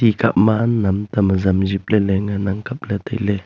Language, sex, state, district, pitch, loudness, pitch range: Wancho, male, Arunachal Pradesh, Longding, 100 Hz, -18 LUFS, 95-110 Hz